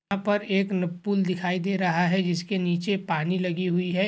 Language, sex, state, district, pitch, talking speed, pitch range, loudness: Hindi, male, Uttar Pradesh, Jalaun, 185 Hz, 220 wpm, 180-195 Hz, -26 LUFS